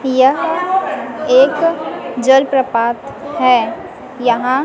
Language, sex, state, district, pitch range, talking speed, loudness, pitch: Hindi, female, Chhattisgarh, Raipur, 250-290 Hz, 65 wpm, -14 LUFS, 265 Hz